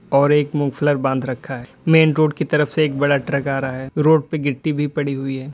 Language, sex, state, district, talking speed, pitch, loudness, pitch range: Hindi, male, Uttar Pradesh, Lalitpur, 260 wpm, 145 Hz, -19 LUFS, 135-155 Hz